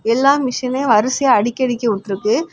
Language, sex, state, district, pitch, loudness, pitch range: Tamil, female, Tamil Nadu, Kanyakumari, 250 Hz, -16 LUFS, 220-265 Hz